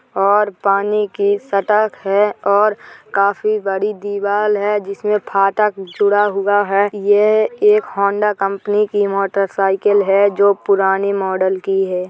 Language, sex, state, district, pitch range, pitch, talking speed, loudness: Hindi, female, Uttar Pradesh, Hamirpur, 195-210 Hz, 200 Hz, 140 wpm, -16 LUFS